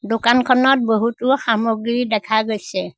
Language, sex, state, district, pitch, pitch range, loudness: Assamese, female, Assam, Sonitpur, 230 Hz, 220-245 Hz, -17 LUFS